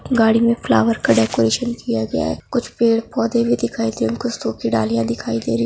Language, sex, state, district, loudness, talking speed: Hindi, female, Bihar, Araria, -19 LUFS, 210 wpm